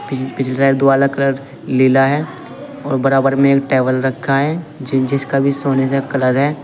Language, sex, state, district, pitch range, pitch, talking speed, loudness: Hindi, male, Uttar Pradesh, Saharanpur, 135-140 Hz, 135 Hz, 180 wpm, -15 LUFS